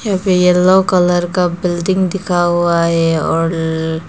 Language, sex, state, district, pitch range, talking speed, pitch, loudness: Hindi, female, Arunachal Pradesh, Papum Pare, 165-185 Hz, 130 wpm, 175 Hz, -14 LUFS